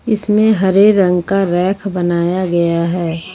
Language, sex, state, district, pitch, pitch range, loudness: Hindi, female, Jharkhand, Ranchi, 185 Hz, 175-200 Hz, -14 LUFS